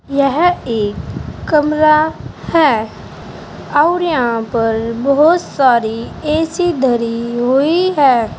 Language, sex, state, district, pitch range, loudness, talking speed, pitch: Hindi, female, Uttar Pradesh, Saharanpur, 235-315 Hz, -14 LUFS, 100 wpm, 275 Hz